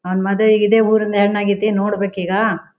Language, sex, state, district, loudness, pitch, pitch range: Kannada, female, Karnataka, Shimoga, -16 LUFS, 205 Hz, 195-215 Hz